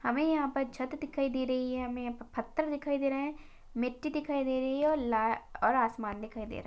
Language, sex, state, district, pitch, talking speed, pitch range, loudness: Hindi, female, Maharashtra, Nagpur, 260 Hz, 260 wpm, 240-290 Hz, -33 LUFS